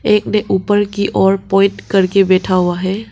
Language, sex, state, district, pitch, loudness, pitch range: Hindi, female, Arunachal Pradesh, Papum Pare, 195 Hz, -14 LUFS, 190-205 Hz